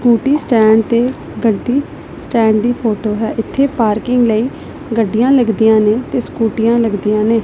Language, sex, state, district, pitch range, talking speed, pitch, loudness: Punjabi, female, Punjab, Pathankot, 220-245 Hz, 145 wpm, 230 Hz, -14 LUFS